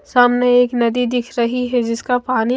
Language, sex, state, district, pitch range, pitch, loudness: Hindi, female, Maharashtra, Mumbai Suburban, 235-250 Hz, 245 Hz, -16 LUFS